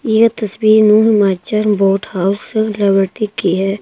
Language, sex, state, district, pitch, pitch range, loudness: Hindi, female, Himachal Pradesh, Shimla, 210 Hz, 195-215 Hz, -14 LUFS